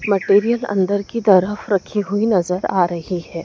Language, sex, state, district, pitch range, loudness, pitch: Hindi, female, Madhya Pradesh, Dhar, 180-210 Hz, -18 LUFS, 200 Hz